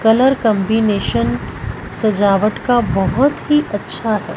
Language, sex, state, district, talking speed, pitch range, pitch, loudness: Hindi, female, Punjab, Fazilka, 110 wpm, 200-235 Hz, 215 Hz, -16 LUFS